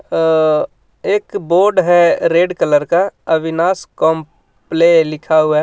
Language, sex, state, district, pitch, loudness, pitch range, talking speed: Hindi, male, Jharkhand, Ranchi, 165 Hz, -14 LUFS, 160-180 Hz, 130 wpm